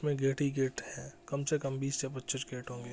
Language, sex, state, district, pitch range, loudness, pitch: Hindi, male, Bihar, Jahanabad, 130-140 Hz, -35 LUFS, 135 Hz